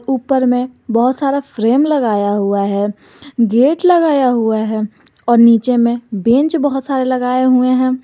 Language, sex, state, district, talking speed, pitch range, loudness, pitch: Hindi, male, Jharkhand, Garhwa, 155 wpm, 230-270 Hz, -14 LUFS, 250 Hz